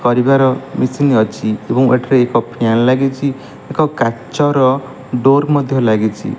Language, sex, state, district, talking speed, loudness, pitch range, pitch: Odia, male, Odisha, Malkangiri, 120 wpm, -14 LUFS, 115-135 Hz, 130 Hz